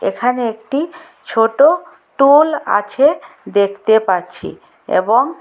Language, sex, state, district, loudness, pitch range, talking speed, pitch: Bengali, female, Assam, Hailakandi, -15 LUFS, 220-300 Hz, 90 wpm, 250 Hz